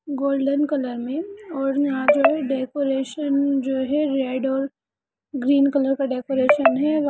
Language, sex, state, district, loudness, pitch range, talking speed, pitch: Hindi, female, Bihar, Sitamarhi, -21 LUFS, 270-290 Hz, 150 wpm, 275 Hz